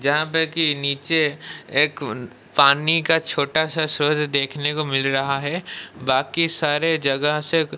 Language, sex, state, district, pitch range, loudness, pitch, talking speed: Hindi, male, Odisha, Malkangiri, 140-160 Hz, -20 LUFS, 150 Hz, 145 wpm